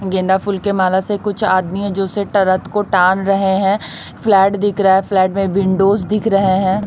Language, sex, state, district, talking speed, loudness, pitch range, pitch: Hindi, female, Chhattisgarh, Raipur, 220 wpm, -15 LUFS, 190-200 Hz, 195 Hz